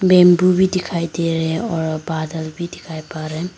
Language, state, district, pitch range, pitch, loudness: Hindi, Arunachal Pradesh, Lower Dibang Valley, 160-180 Hz, 165 Hz, -18 LUFS